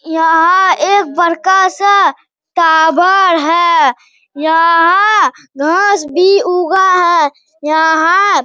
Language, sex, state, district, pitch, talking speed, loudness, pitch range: Hindi, male, Bihar, Bhagalpur, 345 Hz, 100 wpm, -10 LUFS, 320-380 Hz